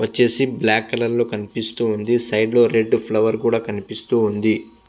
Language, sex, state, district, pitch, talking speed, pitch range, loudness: Telugu, male, Andhra Pradesh, Visakhapatnam, 115 Hz, 160 wpm, 110-120 Hz, -19 LUFS